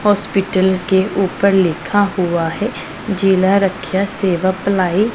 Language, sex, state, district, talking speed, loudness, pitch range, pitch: Hindi, female, Punjab, Pathankot, 130 wpm, -16 LUFS, 185-200 Hz, 195 Hz